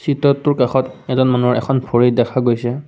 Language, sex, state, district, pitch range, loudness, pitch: Assamese, male, Assam, Kamrup Metropolitan, 125-135 Hz, -16 LUFS, 130 Hz